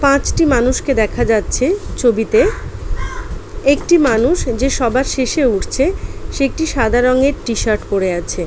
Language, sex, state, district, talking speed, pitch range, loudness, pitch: Bengali, female, West Bengal, Paschim Medinipur, 125 wpm, 225-275 Hz, -15 LUFS, 250 Hz